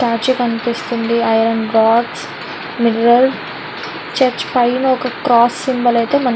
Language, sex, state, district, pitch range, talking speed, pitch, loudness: Telugu, female, Andhra Pradesh, Visakhapatnam, 230-255 Hz, 140 wpm, 240 Hz, -15 LUFS